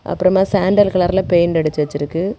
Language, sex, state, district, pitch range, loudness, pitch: Tamil, female, Tamil Nadu, Kanyakumari, 165-190 Hz, -16 LUFS, 185 Hz